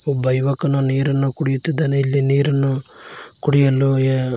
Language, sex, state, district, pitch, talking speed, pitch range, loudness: Kannada, male, Karnataka, Koppal, 135 Hz, 95 wpm, 135-140 Hz, -13 LUFS